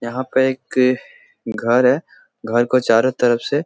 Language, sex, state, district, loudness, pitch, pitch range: Hindi, male, Bihar, Jahanabad, -17 LUFS, 125 Hz, 120-130 Hz